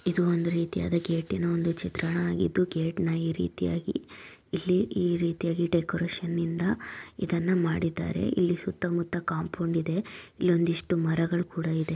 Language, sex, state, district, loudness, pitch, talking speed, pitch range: Kannada, female, Karnataka, Chamarajanagar, -28 LUFS, 170 Hz, 140 wpm, 165-180 Hz